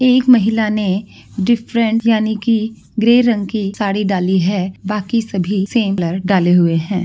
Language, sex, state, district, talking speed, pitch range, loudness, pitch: Hindi, female, Maharashtra, Nagpur, 160 wpm, 190-225 Hz, -16 LUFS, 210 Hz